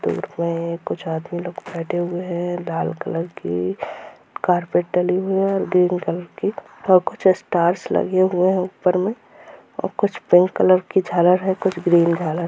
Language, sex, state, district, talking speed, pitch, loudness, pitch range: Hindi, female, Bihar, Purnia, 180 wpm, 180 Hz, -20 LUFS, 170-185 Hz